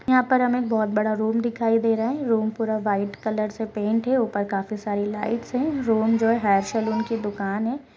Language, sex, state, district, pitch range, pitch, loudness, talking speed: Hindi, female, Goa, North and South Goa, 210-235 Hz, 225 Hz, -23 LUFS, 235 wpm